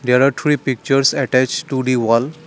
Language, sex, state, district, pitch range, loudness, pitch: English, male, Assam, Kamrup Metropolitan, 125-135 Hz, -16 LUFS, 130 Hz